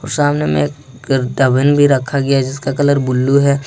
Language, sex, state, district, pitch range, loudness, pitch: Hindi, male, Jharkhand, Ranchi, 130-140 Hz, -14 LUFS, 135 Hz